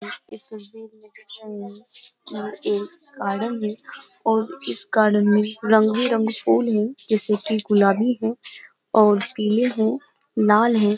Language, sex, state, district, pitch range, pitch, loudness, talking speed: Hindi, female, Uttar Pradesh, Jyotiba Phule Nagar, 210-230 Hz, 215 Hz, -19 LUFS, 130 wpm